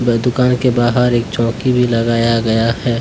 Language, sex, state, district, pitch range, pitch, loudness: Hindi, male, Jharkhand, Deoghar, 115-125 Hz, 120 Hz, -14 LUFS